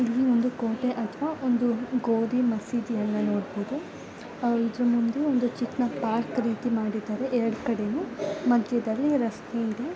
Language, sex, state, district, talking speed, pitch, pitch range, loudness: Kannada, female, Karnataka, Bellary, 120 wpm, 240 Hz, 225-250 Hz, -27 LUFS